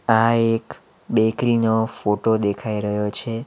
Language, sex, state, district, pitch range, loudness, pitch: Gujarati, male, Gujarat, Valsad, 105-115 Hz, -20 LUFS, 110 Hz